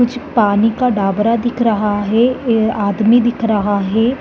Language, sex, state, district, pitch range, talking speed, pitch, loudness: Hindi, female, Chhattisgarh, Bastar, 205-240 Hz, 170 wpm, 225 Hz, -15 LUFS